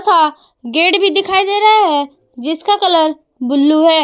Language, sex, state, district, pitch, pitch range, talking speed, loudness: Hindi, female, Jharkhand, Palamu, 320 Hz, 300-385 Hz, 150 wpm, -12 LUFS